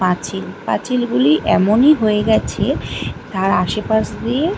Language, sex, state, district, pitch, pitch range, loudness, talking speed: Bengali, female, West Bengal, Malda, 220 Hz, 200-250 Hz, -17 LUFS, 130 wpm